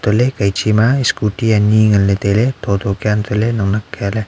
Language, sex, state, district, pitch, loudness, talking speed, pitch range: Wancho, male, Arunachal Pradesh, Longding, 105 Hz, -15 LUFS, 170 wpm, 100-115 Hz